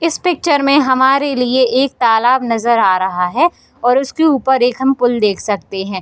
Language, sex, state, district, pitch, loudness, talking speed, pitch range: Hindi, female, Bihar, Bhagalpur, 260 Hz, -14 LUFS, 200 wpm, 230-280 Hz